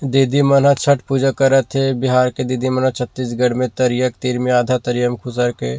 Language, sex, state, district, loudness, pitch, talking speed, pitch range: Chhattisgarhi, male, Chhattisgarh, Rajnandgaon, -17 LUFS, 130 Hz, 240 wpm, 125-135 Hz